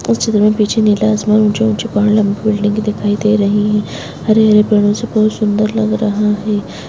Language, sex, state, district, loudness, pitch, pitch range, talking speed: Hindi, female, Uttarakhand, Tehri Garhwal, -13 LUFS, 210 Hz, 210-215 Hz, 210 wpm